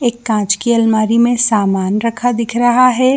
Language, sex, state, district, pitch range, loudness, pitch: Hindi, female, Jharkhand, Jamtara, 215-245 Hz, -13 LUFS, 230 Hz